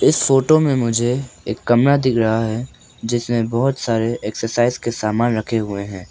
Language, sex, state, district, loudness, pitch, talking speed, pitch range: Hindi, male, Arunachal Pradesh, Papum Pare, -18 LUFS, 120 Hz, 175 wpm, 110-125 Hz